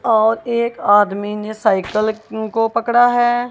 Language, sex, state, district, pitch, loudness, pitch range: Hindi, female, Punjab, Kapurthala, 220 Hz, -17 LUFS, 215-235 Hz